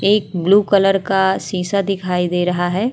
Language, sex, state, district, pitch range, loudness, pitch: Hindi, female, Bihar, Vaishali, 180-200 Hz, -17 LUFS, 195 Hz